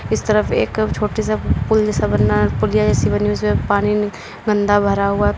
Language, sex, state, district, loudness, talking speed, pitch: Hindi, female, Uttar Pradesh, Lalitpur, -17 LUFS, 190 wpm, 200 Hz